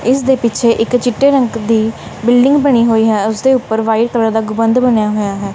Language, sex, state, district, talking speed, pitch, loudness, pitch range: Punjabi, female, Punjab, Kapurthala, 205 wpm, 230 Hz, -13 LUFS, 220-250 Hz